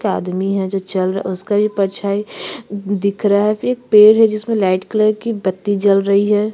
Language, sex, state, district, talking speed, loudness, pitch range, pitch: Hindi, female, Chhattisgarh, Sukma, 230 wpm, -16 LUFS, 195-215 Hz, 205 Hz